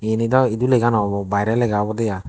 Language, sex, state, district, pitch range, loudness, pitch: Chakma, male, Tripura, Dhalai, 105-120 Hz, -19 LUFS, 110 Hz